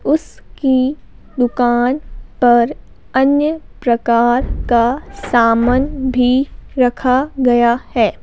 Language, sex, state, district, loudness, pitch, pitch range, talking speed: Hindi, female, Madhya Pradesh, Bhopal, -15 LUFS, 250 Hz, 240-270 Hz, 80 wpm